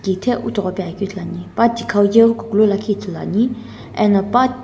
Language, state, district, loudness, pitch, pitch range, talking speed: Sumi, Nagaland, Dimapur, -17 LUFS, 210 Hz, 195-235 Hz, 140 wpm